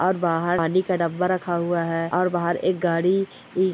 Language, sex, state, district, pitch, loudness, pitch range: Hindi, male, Bihar, Kishanganj, 175 Hz, -23 LUFS, 170-185 Hz